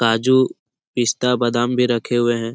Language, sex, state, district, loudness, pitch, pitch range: Hindi, male, Bihar, Jahanabad, -18 LUFS, 120 Hz, 120-125 Hz